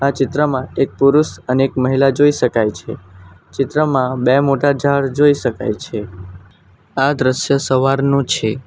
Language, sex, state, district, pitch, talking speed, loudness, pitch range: Gujarati, male, Gujarat, Valsad, 135 Hz, 140 wpm, -16 LUFS, 115-140 Hz